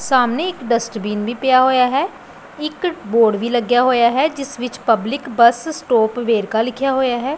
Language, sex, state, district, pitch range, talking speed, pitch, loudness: Punjabi, female, Punjab, Pathankot, 235-270 Hz, 180 wpm, 245 Hz, -17 LUFS